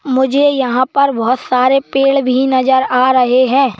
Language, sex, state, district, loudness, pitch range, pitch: Hindi, male, Madhya Pradesh, Bhopal, -12 LUFS, 255-275 Hz, 260 Hz